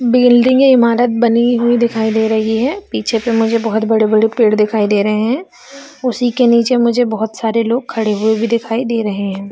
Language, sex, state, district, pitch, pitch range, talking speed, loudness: Hindi, female, Bihar, Jamui, 230 Hz, 220-245 Hz, 200 wpm, -14 LUFS